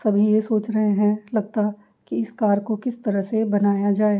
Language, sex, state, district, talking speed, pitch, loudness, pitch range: Hindi, female, Uttar Pradesh, Jyotiba Phule Nagar, 230 wpm, 210 Hz, -22 LUFS, 205-215 Hz